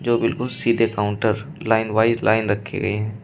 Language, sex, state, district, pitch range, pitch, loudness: Hindi, male, Uttar Pradesh, Shamli, 105-115 Hz, 110 Hz, -21 LUFS